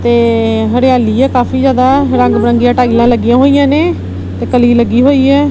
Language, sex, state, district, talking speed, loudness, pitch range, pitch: Punjabi, female, Punjab, Kapurthala, 175 wpm, -10 LUFS, 235-270 Hz, 245 Hz